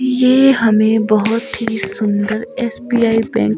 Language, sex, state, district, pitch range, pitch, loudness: Hindi, female, Himachal Pradesh, Shimla, 215-245 Hz, 225 Hz, -15 LUFS